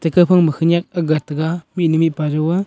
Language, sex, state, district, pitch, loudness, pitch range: Wancho, male, Arunachal Pradesh, Longding, 165 Hz, -17 LUFS, 155-175 Hz